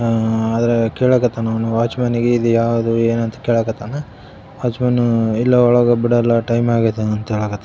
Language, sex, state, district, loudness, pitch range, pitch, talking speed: Kannada, male, Karnataka, Raichur, -16 LUFS, 115-120 Hz, 115 Hz, 175 wpm